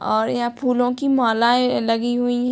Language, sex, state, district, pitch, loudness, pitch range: Hindi, female, Bihar, Darbhanga, 245 Hz, -19 LUFS, 235-250 Hz